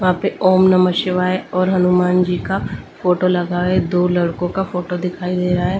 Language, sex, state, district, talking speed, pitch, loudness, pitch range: Hindi, female, Delhi, New Delhi, 205 wpm, 180 Hz, -17 LUFS, 180-185 Hz